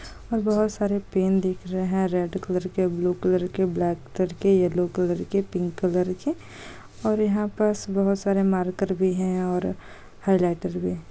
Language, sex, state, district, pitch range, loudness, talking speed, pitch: Hindi, female, Bihar, Jahanabad, 180-195 Hz, -25 LUFS, 185 wpm, 185 Hz